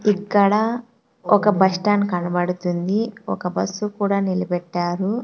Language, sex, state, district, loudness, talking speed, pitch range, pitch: Telugu, female, Andhra Pradesh, Sri Satya Sai, -21 LUFS, 105 wpm, 180-210 Hz, 200 Hz